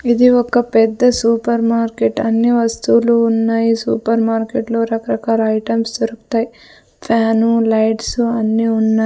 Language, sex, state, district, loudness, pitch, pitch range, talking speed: Telugu, female, Andhra Pradesh, Sri Satya Sai, -15 LUFS, 230 Hz, 225-230 Hz, 120 wpm